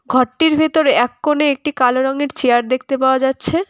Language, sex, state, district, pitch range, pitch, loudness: Bengali, female, West Bengal, Cooch Behar, 255-300 Hz, 270 Hz, -16 LUFS